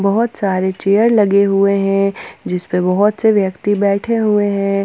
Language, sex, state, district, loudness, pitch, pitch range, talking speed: Hindi, female, Jharkhand, Ranchi, -15 LUFS, 200 Hz, 195-210 Hz, 160 wpm